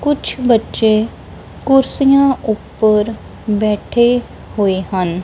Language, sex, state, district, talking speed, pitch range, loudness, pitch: Punjabi, female, Punjab, Kapurthala, 80 wpm, 210-260 Hz, -15 LUFS, 220 Hz